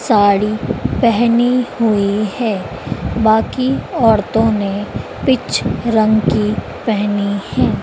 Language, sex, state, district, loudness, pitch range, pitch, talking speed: Hindi, female, Madhya Pradesh, Dhar, -16 LUFS, 205-230 Hz, 220 Hz, 90 wpm